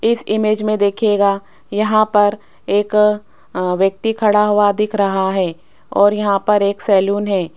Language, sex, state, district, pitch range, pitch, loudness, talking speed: Hindi, female, Rajasthan, Jaipur, 200-210 Hz, 205 Hz, -16 LUFS, 150 wpm